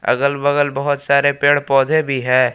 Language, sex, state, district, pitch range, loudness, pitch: Hindi, male, Jharkhand, Palamu, 135-145 Hz, -16 LUFS, 140 Hz